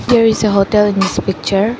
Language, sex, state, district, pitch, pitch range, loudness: English, female, Arunachal Pradesh, Lower Dibang Valley, 210 Hz, 195-225 Hz, -14 LUFS